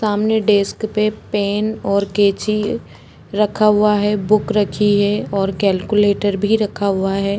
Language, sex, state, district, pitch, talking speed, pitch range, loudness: Hindi, female, Uttarakhand, Tehri Garhwal, 205 Hz, 145 wpm, 200-215 Hz, -17 LUFS